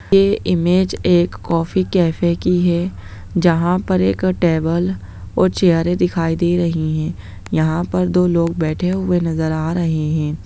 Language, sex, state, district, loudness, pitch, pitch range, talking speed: Hindi, female, Bihar, Muzaffarpur, -17 LUFS, 170 Hz, 160-180 Hz, 155 wpm